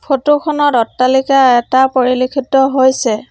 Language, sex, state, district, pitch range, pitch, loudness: Assamese, female, Assam, Sonitpur, 255-275 Hz, 260 Hz, -12 LUFS